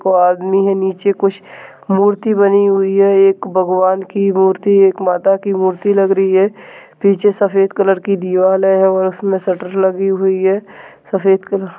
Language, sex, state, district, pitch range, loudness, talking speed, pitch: Hindi, male, Chhattisgarh, Balrampur, 190-200 Hz, -14 LUFS, 175 wpm, 195 Hz